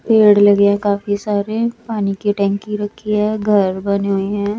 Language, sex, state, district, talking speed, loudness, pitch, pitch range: Hindi, male, Chandigarh, Chandigarh, 185 wpm, -16 LUFS, 205 Hz, 200-210 Hz